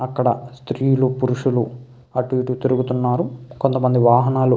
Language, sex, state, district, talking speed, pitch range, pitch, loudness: Telugu, male, Andhra Pradesh, Krishna, 120 wpm, 125-130 Hz, 125 Hz, -19 LUFS